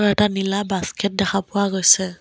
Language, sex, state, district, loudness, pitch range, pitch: Assamese, female, Assam, Kamrup Metropolitan, -19 LUFS, 190-205 Hz, 195 Hz